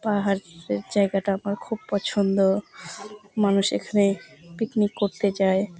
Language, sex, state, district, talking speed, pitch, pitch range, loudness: Bengali, female, West Bengal, Jalpaiguri, 105 wpm, 200 Hz, 195-205 Hz, -24 LUFS